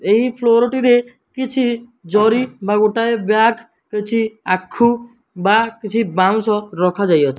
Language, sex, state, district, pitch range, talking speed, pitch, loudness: Odia, male, Odisha, Malkangiri, 210-235 Hz, 115 wpm, 225 Hz, -17 LUFS